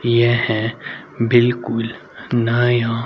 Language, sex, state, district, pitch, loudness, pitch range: Hindi, male, Haryana, Rohtak, 120 Hz, -18 LUFS, 115-120 Hz